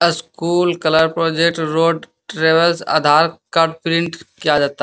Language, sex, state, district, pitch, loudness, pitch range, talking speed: Hindi, male, Bihar, Bhagalpur, 165 Hz, -16 LUFS, 160-170 Hz, 135 wpm